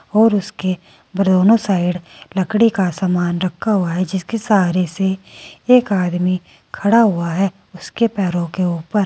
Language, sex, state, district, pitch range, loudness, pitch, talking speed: Hindi, female, Uttar Pradesh, Saharanpur, 180-210 Hz, -17 LUFS, 190 Hz, 145 wpm